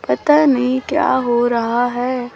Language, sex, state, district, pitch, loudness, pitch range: Hindi, female, Chhattisgarh, Raipur, 250 Hz, -16 LUFS, 240-260 Hz